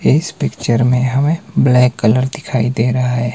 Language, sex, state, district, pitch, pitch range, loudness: Hindi, male, Himachal Pradesh, Shimla, 125 Hz, 120-140 Hz, -15 LUFS